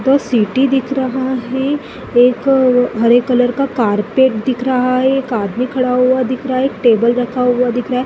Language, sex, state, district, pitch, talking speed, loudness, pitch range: Hindi, female, Chhattisgarh, Balrampur, 255 Hz, 200 wpm, -14 LUFS, 245-260 Hz